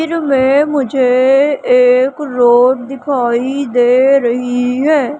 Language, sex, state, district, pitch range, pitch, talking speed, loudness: Hindi, female, Madhya Pradesh, Umaria, 250-280 Hz, 260 Hz, 105 wpm, -12 LUFS